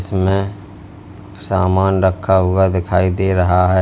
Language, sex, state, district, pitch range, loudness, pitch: Hindi, male, Uttar Pradesh, Lalitpur, 95-100 Hz, -16 LUFS, 95 Hz